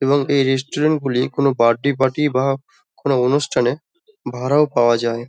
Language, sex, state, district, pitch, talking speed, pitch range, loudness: Bengali, male, West Bengal, Dakshin Dinajpur, 135 Hz, 160 wpm, 125-145 Hz, -18 LUFS